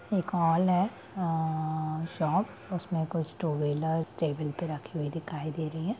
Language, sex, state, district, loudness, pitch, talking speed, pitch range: Hindi, female, Bihar, Darbhanga, -31 LUFS, 160 Hz, 150 wpm, 155-175 Hz